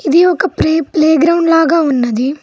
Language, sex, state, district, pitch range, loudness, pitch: Telugu, female, Telangana, Mahabubabad, 300-335 Hz, -12 LUFS, 320 Hz